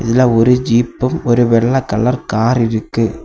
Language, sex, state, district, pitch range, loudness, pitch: Tamil, male, Tamil Nadu, Kanyakumari, 115-125 Hz, -14 LUFS, 120 Hz